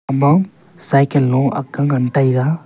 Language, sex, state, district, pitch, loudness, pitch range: Wancho, male, Arunachal Pradesh, Longding, 140 Hz, -16 LUFS, 135-165 Hz